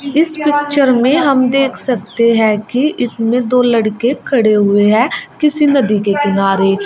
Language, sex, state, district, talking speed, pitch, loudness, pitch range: Hindi, female, Uttar Pradesh, Shamli, 155 wpm, 245 Hz, -13 LUFS, 215-280 Hz